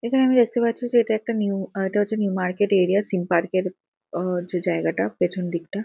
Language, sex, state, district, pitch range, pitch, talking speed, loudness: Bengali, female, West Bengal, Kolkata, 180-220 Hz, 195 Hz, 225 wpm, -23 LUFS